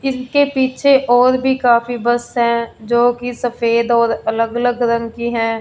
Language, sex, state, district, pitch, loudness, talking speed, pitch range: Hindi, female, Punjab, Fazilka, 240 Hz, -16 LUFS, 160 wpm, 235-255 Hz